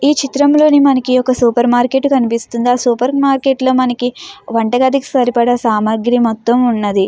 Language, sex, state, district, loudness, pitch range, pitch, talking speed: Telugu, female, Andhra Pradesh, Guntur, -13 LUFS, 235-270 Hz, 250 Hz, 160 wpm